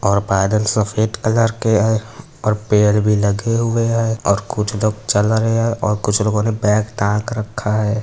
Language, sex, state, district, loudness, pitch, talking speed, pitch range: Hindi, male, Uttar Pradesh, Etah, -17 LUFS, 110 Hz, 195 wpm, 105-115 Hz